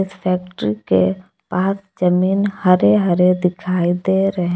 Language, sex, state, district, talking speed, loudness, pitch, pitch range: Hindi, female, Jharkhand, Palamu, 120 wpm, -17 LUFS, 180 Hz, 175-190 Hz